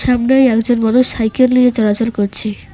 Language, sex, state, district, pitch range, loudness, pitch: Bengali, female, West Bengal, Cooch Behar, 220-250 Hz, -13 LUFS, 235 Hz